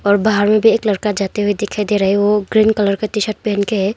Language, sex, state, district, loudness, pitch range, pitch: Hindi, female, Arunachal Pradesh, Longding, -15 LUFS, 200-215 Hz, 210 Hz